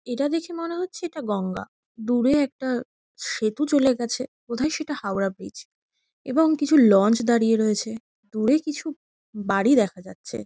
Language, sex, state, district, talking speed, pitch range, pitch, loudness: Bengali, female, West Bengal, Kolkata, 155 wpm, 215-295 Hz, 250 Hz, -23 LUFS